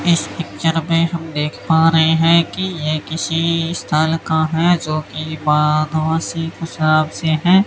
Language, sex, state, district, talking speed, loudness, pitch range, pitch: Hindi, male, Rajasthan, Bikaner, 150 wpm, -17 LUFS, 155-165 Hz, 160 Hz